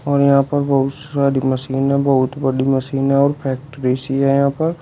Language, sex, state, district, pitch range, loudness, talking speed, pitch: Hindi, male, Uttar Pradesh, Shamli, 135-140 Hz, -17 LUFS, 210 wpm, 135 Hz